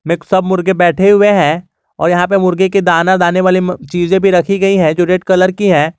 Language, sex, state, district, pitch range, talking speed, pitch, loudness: Hindi, male, Jharkhand, Garhwa, 175-190 Hz, 240 wpm, 185 Hz, -11 LUFS